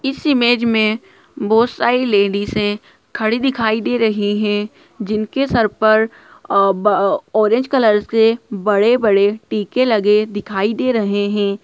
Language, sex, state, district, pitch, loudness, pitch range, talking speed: Hindi, female, Bihar, Lakhisarai, 215 Hz, -16 LUFS, 205-235 Hz, 140 wpm